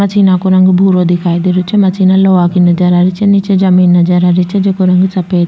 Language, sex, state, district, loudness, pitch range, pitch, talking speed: Rajasthani, female, Rajasthan, Nagaur, -9 LUFS, 180-190 Hz, 185 Hz, 285 wpm